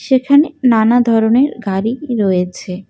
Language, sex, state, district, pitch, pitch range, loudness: Bengali, female, West Bengal, Alipurduar, 230 Hz, 195-260 Hz, -14 LUFS